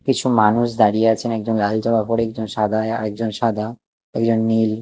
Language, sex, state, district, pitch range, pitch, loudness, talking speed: Bengali, male, Odisha, Nuapada, 110-115 Hz, 115 Hz, -19 LUFS, 175 wpm